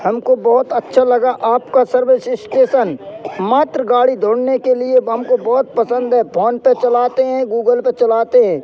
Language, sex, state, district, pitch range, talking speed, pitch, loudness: Hindi, male, Madhya Pradesh, Katni, 245-280 Hz, 175 wpm, 255 Hz, -14 LUFS